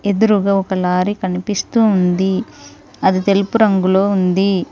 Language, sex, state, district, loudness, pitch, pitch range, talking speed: Telugu, female, Telangana, Mahabubabad, -15 LUFS, 195 Hz, 185-205 Hz, 100 wpm